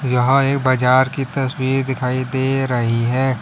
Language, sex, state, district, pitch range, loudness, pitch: Hindi, male, Uttar Pradesh, Lalitpur, 125-135 Hz, -18 LUFS, 130 Hz